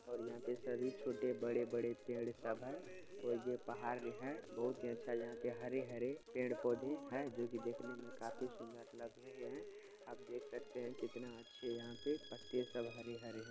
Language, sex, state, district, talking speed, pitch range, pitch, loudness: Hindi, male, Bihar, Supaul, 190 wpm, 120-125 Hz, 120 Hz, -45 LUFS